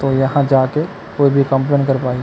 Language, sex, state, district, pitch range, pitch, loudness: Chhattisgarhi, male, Chhattisgarh, Kabirdham, 135-140 Hz, 135 Hz, -16 LUFS